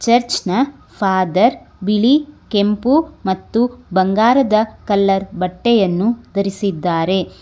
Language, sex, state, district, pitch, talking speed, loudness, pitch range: Kannada, female, Karnataka, Bangalore, 205 Hz, 75 wpm, -16 LUFS, 190-240 Hz